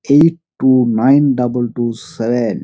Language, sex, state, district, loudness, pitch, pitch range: Bengali, male, West Bengal, Dakshin Dinajpur, -14 LUFS, 125 Hz, 120-140 Hz